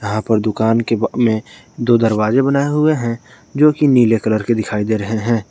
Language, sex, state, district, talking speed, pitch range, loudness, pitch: Hindi, male, Jharkhand, Garhwa, 205 wpm, 110-125 Hz, -16 LUFS, 115 Hz